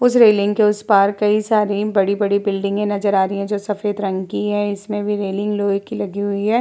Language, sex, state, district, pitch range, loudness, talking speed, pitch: Hindi, female, Uttar Pradesh, Hamirpur, 200-210 Hz, -18 LUFS, 245 wpm, 205 Hz